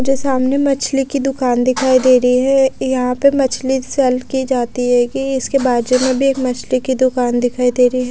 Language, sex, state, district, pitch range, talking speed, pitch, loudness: Hindi, female, Odisha, Nuapada, 250-270 Hz, 215 wpm, 255 Hz, -15 LUFS